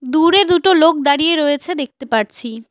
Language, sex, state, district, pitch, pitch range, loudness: Bengali, female, West Bengal, Cooch Behar, 295 Hz, 260-340 Hz, -14 LUFS